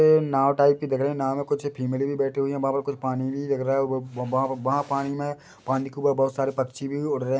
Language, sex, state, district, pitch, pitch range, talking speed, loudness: Hindi, male, Chhattisgarh, Bilaspur, 135 Hz, 135-140 Hz, 285 wpm, -25 LUFS